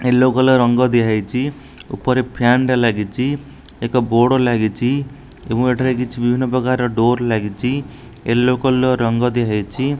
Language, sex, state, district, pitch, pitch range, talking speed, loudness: Odia, male, Odisha, Nuapada, 125 Hz, 120-130 Hz, 130 wpm, -17 LUFS